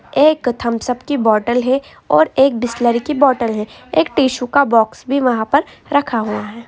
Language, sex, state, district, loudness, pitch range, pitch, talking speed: Hindi, female, Uttar Pradesh, Hamirpur, -16 LUFS, 230-275 Hz, 245 Hz, 205 wpm